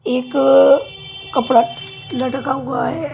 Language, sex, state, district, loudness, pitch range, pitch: Hindi, female, Punjab, Pathankot, -16 LUFS, 240-270 Hz, 255 Hz